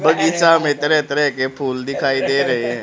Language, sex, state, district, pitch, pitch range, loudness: Hindi, male, Haryana, Charkhi Dadri, 140 Hz, 130-155 Hz, -17 LUFS